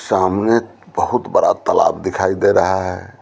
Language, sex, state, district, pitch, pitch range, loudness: Hindi, male, Bihar, Patna, 100 Hz, 95-115 Hz, -17 LUFS